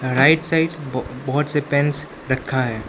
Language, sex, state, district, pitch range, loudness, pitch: Hindi, male, Arunachal Pradesh, Lower Dibang Valley, 130-150 Hz, -20 LUFS, 140 Hz